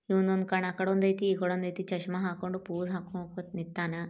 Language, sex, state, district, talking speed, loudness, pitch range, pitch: Kannada, female, Karnataka, Bijapur, 175 wpm, -31 LUFS, 180-190 Hz, 180 Hz